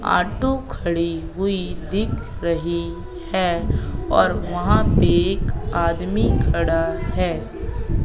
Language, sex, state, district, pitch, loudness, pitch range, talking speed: Hindi, female, Madhya Pradesh, Katni, 170 Hz, -22 LUFS, 165-185 Hz, 95 wpm